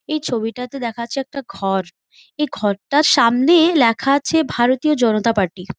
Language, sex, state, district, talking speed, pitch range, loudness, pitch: Bengali, female, West Bengal, Jhargram, 165 wpm, 225-295 Hz, -17 LUFS, 245 Hz